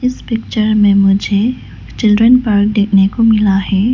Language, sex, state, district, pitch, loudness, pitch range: Hindi, female, Arunachal Pradesh, Lower Dibang Valley, 210 Hz, -12 LUFS, 200-230 Hz